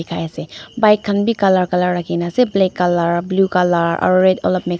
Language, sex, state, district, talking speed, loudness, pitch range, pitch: Nagamese, female, Nagaland, Dimapur, 210 wpm, -16 LUFS, 175-195 Hz, 180 Hz